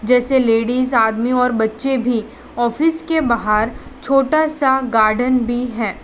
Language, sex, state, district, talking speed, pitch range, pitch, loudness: Hindi, female, Gujarat, Valsad, 140 wpm, 225-265 Hz, 245 Hz, -17 LUFS